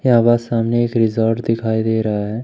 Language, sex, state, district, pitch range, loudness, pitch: Hindi, male, Madhya Pradesh, Umaria, 110-120 Hz, -17 LUFS, 115 Hz